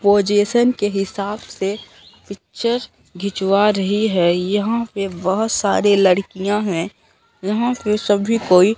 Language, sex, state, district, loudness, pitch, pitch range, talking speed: Hindi, female, Bihar, Katihar, -18 LUFS, 205 Hz, 195-215 Hz, 125 wpm